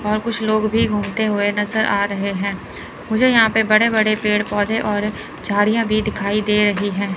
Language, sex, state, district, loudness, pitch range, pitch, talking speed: Hindi, male, Chandigarh, Chandigarh, -18 LUFS, 205-220 Hz, 210 Hz, 200 wpm